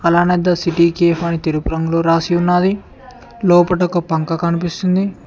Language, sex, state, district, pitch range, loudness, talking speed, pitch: Telugu, male, Telangana, Mahabubabad, 170-180 Hz, -16 LUFS, 150 wpm, 175 Hz